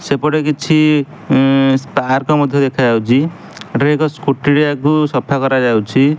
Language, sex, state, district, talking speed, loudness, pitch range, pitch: Odia, male, Odisha, Malkangiri, 115 wpm, -14 LUFS, 135-150 Hz, 140 Hz